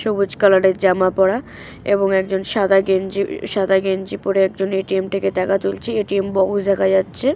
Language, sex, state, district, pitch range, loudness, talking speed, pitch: Bengali, female, West Bengal, North 24 Parganas, 190-200 Hz, -18 LUFS, 170 wpm, 195 Hz